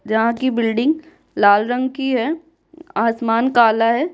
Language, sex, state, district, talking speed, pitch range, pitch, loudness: Hindi, female, Bihar, Kishanganj, 145 wpm, 225-305 Hz, 240 Hz, -18 LUFS